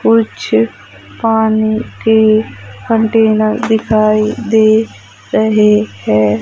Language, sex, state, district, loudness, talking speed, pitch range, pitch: Hindi, female, Madhya Pradesh, Umaria, -12 LUFS, 75 wpm, 210-220 Hz, 215 Hz